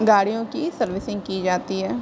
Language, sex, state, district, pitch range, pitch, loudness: Hindi, female, Uttar Pradesh, Gorakhpur, 190-230 Hz, 205 Hz, -23 LUFS